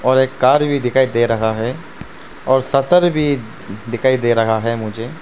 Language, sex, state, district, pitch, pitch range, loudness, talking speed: Hindi, male, Arunachal Pradesh, Papum Pare, 130 Hz, 115-135 Hz, -16 LUFS, 185 wpm